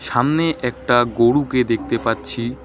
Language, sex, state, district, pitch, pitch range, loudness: Bengali, male, West Bengal, Alipurduar, 120 Hz, 115-130 Hz, -18 LUFS